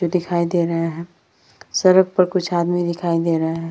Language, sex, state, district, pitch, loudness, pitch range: Hindi, female, Bihar, Vaishali, 170 Hz, -19 LUFS, 165-175 Hz